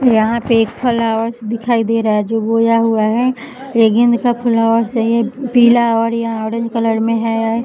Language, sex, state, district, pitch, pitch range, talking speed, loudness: Hindi, female, Bihar, Jahanabad, 230 Hz, 225-235 Hz, 190 wpm, -15 LUFS